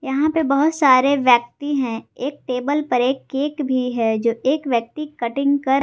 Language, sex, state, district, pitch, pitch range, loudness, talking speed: Hindi, female, Jharkhand, Garhwa, 270 Hz, 245-285 Hz, -19 LUFS, 185 wpm